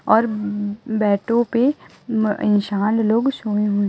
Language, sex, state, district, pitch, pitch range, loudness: Hindi, female, Chhattisgarh, Raipur, 215 Hz, 205-230 Hz, -20 LUFS